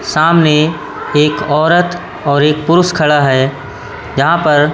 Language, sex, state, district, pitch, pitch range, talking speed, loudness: Hindi, male, Madhya Pradesh, Katni, 150 Hz, 145-165 Hz, 125 wpm, -12 LUFS